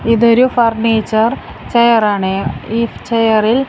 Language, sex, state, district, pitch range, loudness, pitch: Malayalam, female, Kerala, Kasaragod, 220-235 Hz, -13 LUFS, 230 Hz